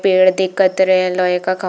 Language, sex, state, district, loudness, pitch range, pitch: Hindi, female, Chhattisgarh, Bilaspur, -15 LUFS, 185-190 Hz, 185 Hz